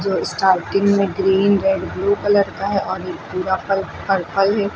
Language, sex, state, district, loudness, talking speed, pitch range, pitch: Hindi, female, Uttar Pradesh, Lucknow, -18 LUFS, 190 wpm, 190-200 Hz, 195 Hz